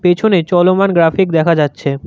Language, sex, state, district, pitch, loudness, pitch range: Bengali, male, West Bengal, Cooch Behar, 175 Hz, -12 LUFS, 160-185 Hz